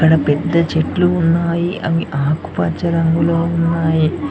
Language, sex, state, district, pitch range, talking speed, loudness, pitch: Telugu, male, Telangana, Mahabubabad, 160-170 Hz, 110 wpm, -16 LUFS, 165 Hz